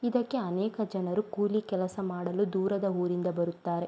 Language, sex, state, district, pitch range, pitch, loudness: Kannada, female, Karnataka, Mysore, 180-210 Hz, 190 Hz, -31 LUFS